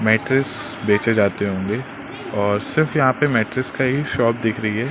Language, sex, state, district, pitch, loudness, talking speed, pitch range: Hindi, male, Madhya Pradesh, Katni, 115 Hz, -20 LUFS, 185 wpm, 105-135 Hz